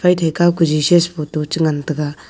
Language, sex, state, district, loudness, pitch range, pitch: Wancho, female, Arunachal Pradesh, Longding, -16 LUFS, 150-175 Hz, 160 Hz